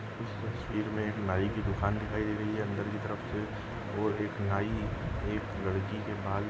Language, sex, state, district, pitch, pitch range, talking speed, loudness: Hindi, male, Maharashtra, Nagpur, 105 Hz, 100-105 Hz, 205 wpm, -34 LUFS